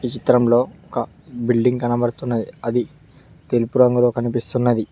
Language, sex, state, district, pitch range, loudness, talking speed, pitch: Telugu, male, Telangana, Mahabubabad, 120-125 Hz, -19 LUFS, 95 wpm, 120 Hz